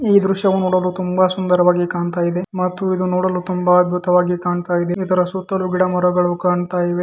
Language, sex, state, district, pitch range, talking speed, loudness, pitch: Kannada, male, Karnataka, Dharwad, 180-185 Hz, 170 wpm, -17 LUFS, 180 Hz